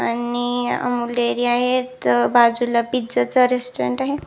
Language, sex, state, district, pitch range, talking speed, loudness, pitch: Marathi, female, Maharashtra, Nagpur, 235-250 Hz, 140 wpm, -19 LUFS, 240 Hz